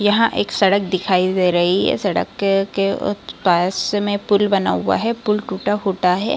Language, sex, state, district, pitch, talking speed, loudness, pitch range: Hindi, female, Bihar, Kishanganj, 195 Hz, 190 wpm, -18 LUFS, 185-205 Hz